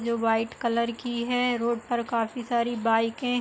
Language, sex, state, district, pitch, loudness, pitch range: Hindi, female, Uttar Pradesh, Hamirpur, 235 Hz, -27 LUFS, 230-240 Hz